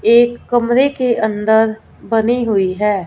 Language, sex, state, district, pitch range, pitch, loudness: Hindi, female, Punjab, Fazilka, 215-240 Hz, 225 Hz, -15 LUFS